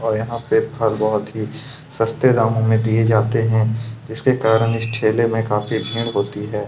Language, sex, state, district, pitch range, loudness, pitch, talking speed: Hindi, male, Chhattisgarh, Kabirdham, 110-115 Hz, -19 LUFS, 115 Hz, 190 wpm